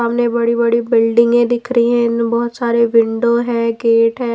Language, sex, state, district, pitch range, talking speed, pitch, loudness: Hindi, female, Punjab, Pathankot, 230-235 Hz, 165 wpm, 235 Hz, -14 LUFS